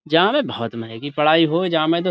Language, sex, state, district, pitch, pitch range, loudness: Urdu, male, Uttar Pradesh, Budaun, 155 Hz, 115-165 Hz, -19 LUFS